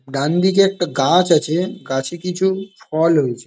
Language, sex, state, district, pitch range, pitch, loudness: Bengali, male, West Bengal, Jalpaiguri, 145-190 Hz, 175 Hz, -17 LUFS